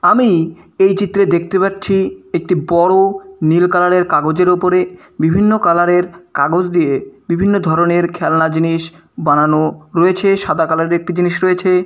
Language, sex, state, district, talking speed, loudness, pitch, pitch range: Bengali, male, West Bengal, Malda, 145 wpm, -14 LUFS, 175 Hz, 165-185 Hz